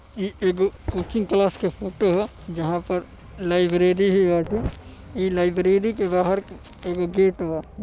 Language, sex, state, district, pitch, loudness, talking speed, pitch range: Bhojpuri, male, Uttar Pradesh, Deoria, 190 Hz, -22 LUFS, 155 wpm, 180-195 Hz